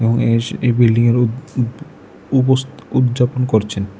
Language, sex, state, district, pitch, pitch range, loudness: Bengali, male, Tripura, West Tripura, 120 Hz, 115-130 Hz, -16 LUFS